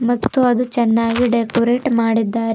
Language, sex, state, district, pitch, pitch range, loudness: Kannada, female, Karnataka, Bidar, 235 Hz, 230-245 Hz, -16 LUFS